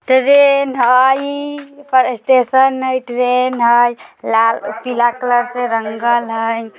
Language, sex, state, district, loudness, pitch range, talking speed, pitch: Bajjika, female, Bihar, Vaishali, -14 LUFS, 235-265 Hz, 105 wpm, 250 Hz